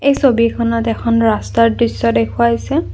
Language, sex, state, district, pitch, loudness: Assamese, female, Assam, Kamrup Metropolitan, 230 Hz, -15 LUFS